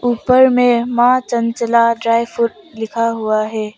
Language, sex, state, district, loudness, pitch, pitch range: Hindi, female, Arunachal Pradesh, Papum Pare, -15 LUFS, 235 Hz, 230-245 Hz